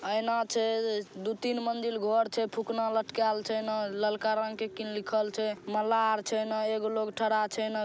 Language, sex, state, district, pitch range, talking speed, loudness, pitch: Maithili, female, Bihar, Saharsa, 215-225 Hz, 190 wpm, -30 LUFS, 220 Hz